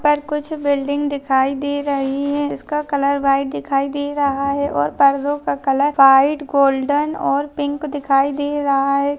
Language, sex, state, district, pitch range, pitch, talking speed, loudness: Hindi, female, Maharashtra, Pune, 275-290 Hz, 285 Hz, 170 wpm, -18 LUFS